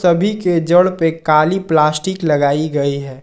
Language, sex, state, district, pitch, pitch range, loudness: Hindi, male, Jharkhand, Ranchi, 165 Hz, 150-180 Hz, -15 LUFS